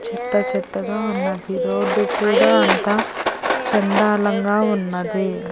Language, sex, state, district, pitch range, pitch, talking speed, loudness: Telugu, female, Andhra Pradesh, Annamaya, 190-215 Hz, 205 Hz, 85 wpm, -19 LUFS